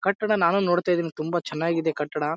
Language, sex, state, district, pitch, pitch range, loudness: Kannada, male, Karnataka, Bijapur, 170 Hz, 160-180 Hz, -24 LUFS